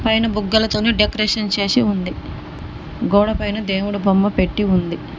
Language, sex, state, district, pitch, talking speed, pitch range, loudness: Telugu, female, Telangana, Mahabubabad, 210 Hz, 140 wpm, 200-220 Hz, -18 LUFS